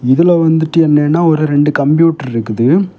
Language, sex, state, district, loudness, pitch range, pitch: Tamil, male, Tamil Nadu, Kanyakumari, -11 LUFS, 145-165 Hz, 155 Hz